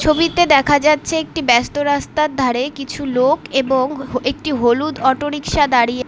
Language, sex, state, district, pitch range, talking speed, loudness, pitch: Bengali, female, West Bengal, Cooch Behar, 255-305 Hz, 140 wpm, -16 LUFS, 280 Hz